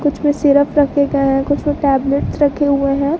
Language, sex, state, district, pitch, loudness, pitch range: Hindi, female, Jharkhand, Garhwa, 285 Hz, -15 LUFS, 275-290 Hz